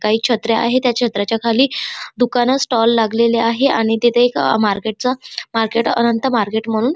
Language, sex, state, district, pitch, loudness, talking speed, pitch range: Marathi, female, Maharashtra, Chandrapur, 235 Hz, -16 LUFS, 165 wpm, 225-245 Hz